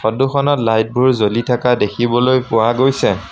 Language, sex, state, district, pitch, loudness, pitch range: Assamese, male, Assam, Sonitpur, 120 Hz, -15 LUFS, 110-130 Hz